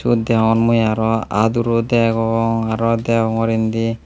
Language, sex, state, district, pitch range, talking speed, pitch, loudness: Chakma, male, Tripura, Unakoti, 110-115 Hz, 150 wpm, 115 Hz, -17 LUFS